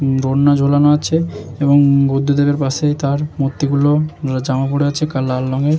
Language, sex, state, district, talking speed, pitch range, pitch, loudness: Bengali, male, West Bengal, Jalpaiguri, 155 wpm, 135-145 Hz, 140 Hz, -15 LUFS